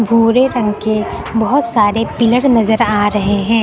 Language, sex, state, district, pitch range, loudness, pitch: Hindi, female, Uttar Pradesh, Lucknow, 210-235 Hz, -13 LUFS, 225 Hz